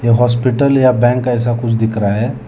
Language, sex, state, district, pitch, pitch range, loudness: Hindi, male, Telangana, Hyderabad, 120 Hz, 115-125 Hz, -14 LUFS